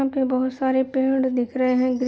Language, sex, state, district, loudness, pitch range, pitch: Hindi, female, Uttar Pradesh, Jalaun, -22 LUFS, 255-265 Hz, 260 Hz